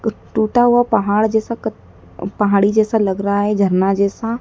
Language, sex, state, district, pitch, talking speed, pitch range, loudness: Hindi, female, Madhya Pradesh, Dhar, 215 Hz, 165 wpm, 200-225 Hz, -16 LUFS